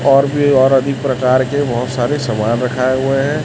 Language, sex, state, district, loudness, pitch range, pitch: Hindi, male, Chhattisgarh, Raipur, -14 LUFS, 125-140 Hz, 135 Hz